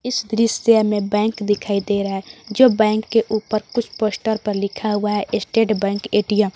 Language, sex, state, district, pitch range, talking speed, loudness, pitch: Hindi, female, Jharkhand, Garhwa, 205-220 Hz, 200 wpm, -19 LUFS, 215 Hz